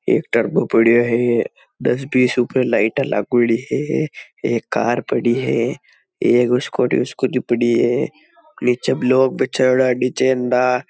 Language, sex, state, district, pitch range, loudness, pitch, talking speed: Marwari, male, Rajasthan, Nagaur, 120-130 Hz, -18 LUFS, 125 Hz, 120 wpm